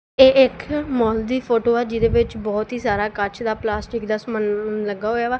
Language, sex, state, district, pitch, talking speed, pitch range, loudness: Punjabi, female, Punjab, Kapurthala, 230 Hz, 210 wpm, 215-240 Hz, -20 LUFS